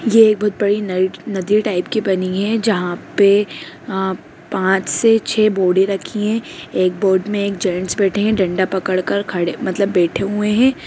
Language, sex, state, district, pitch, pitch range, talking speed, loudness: Hindi, female, Bihar, Begusarai, 200 Hz, 185-210 Hz, 180 wpm, -17 LUFS